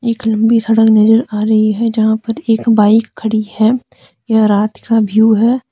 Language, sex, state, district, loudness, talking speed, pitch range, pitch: Hindi, female, Jharkhand, Deoghar, -12 LUFS, 190 wpm, 215-230 Hz, 220 Hz